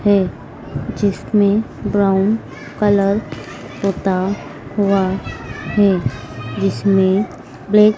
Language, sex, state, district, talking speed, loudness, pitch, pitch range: Hindi, female, Madhya Pradesh, Dhar, 75 wpm, -18 LUFS, 195 Hz, 180-205 Hz